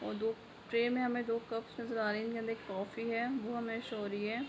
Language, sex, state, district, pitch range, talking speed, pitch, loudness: Hindi, female, Jharkhand, Jamtara, 220-235 Hz, 265 wpm, 230 Hz, -37 LUFS